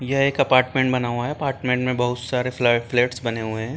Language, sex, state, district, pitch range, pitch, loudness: Hindi, male, Uttar Pradesh, Jyotiba Phule Nagar, 120-130 Hz, 125 Hz, -21 LUFS